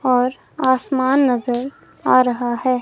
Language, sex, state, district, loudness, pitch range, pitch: Hindi, female, Himachal Pradesh, Shimla, -18 LUFS, 245-260 Hz, 255 Hz